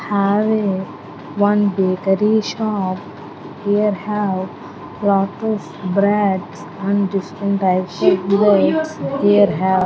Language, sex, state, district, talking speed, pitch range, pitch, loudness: English, female, Andhra Pradesh, Sri Satya Sai, 105 wpm, 190-210 Hz, 200 Hz, -18 LUFS